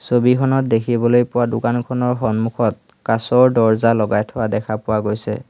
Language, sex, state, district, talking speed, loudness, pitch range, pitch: Assamese, male, Assam, Hailakandi, 130 wpm, -17 LUFS, 110-125 Hz, 115 Hz